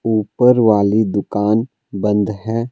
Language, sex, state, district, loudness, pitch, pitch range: Hindi, male, Himachal Pradesh, Shimla, -16 LUFS, 110 Hz, 105-115 Hz